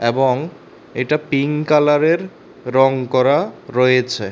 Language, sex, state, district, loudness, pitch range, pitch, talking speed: Bengali, male, Tripura, West Tripura, -17 LUFS, 125-150 Hz, 135 Hz, 95 wpm